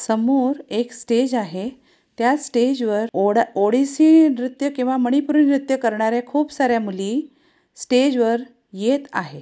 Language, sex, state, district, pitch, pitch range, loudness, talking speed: Marathi, female, Maharashtra, Pune, 255 Hz, 230-280 Hz, -19 LUFS, 135 wpm